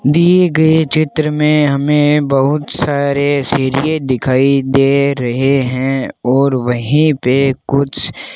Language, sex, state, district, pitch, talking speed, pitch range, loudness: Hindi, male, Rajasthan, Bikaner, 140 Hz, 120 wpm, 135-150 Hz, -13 LUFS